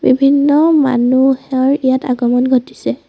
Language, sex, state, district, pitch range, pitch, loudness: Assamese, female, Assam, Sonitpur, 255-275 Hz, 260 Hz, -13 LUFS